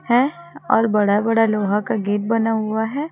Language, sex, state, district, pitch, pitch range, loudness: Hindi, female, Chhattisgarh, Raipur, 225 Hz, 210-230 Hz, -19 LUFS